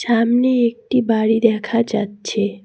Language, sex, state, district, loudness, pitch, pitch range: Bengali, female, West Bengal, Cooch Behar, -17 LUFS, 230 Hz, 215-235 Hz